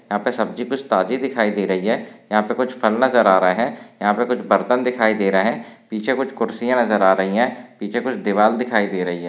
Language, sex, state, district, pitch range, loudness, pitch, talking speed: Hindi, male, Maharashtra, Solapur, 100-125 Hz, -19 LUFS, 110 Hz, 250 wpm